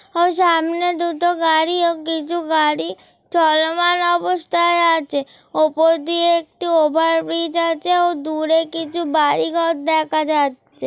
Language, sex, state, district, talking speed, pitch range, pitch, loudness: Bengali, female, West Bengal, Kolkata, 120 wpm, 315-345 Hz, 330 Hz, -18 LUFS